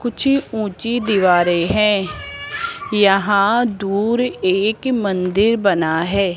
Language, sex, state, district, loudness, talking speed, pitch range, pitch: Hindi, female, Rajasthan, Jaipur, -17 LUFS, 95 wpm, 190-235 Hz, 205 Hz